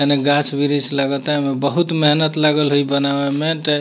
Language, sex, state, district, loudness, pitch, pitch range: Bhojpuri, male, Bihar, Muzaffarpur, -17 LUFS, 145 Hz, 140-150 Hz